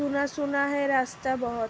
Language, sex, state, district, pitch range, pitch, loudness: Hindi, female, Uttar Pradesh, Hamirpur, 250-280 Hz, 280 Hz, -27 LUFS